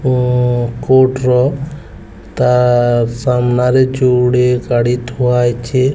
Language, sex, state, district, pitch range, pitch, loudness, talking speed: Odia, male, Odisha, Sambalpur, 120-130 Hz, 125 Hz, -13 LUFS, 80 wpm